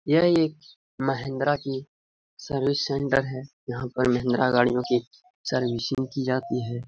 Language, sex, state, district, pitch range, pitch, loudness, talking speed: Hindi, male, Bihar, Jahanabad, 125-140 Hz, 135 Hz, -25 LUFS, 140 wpm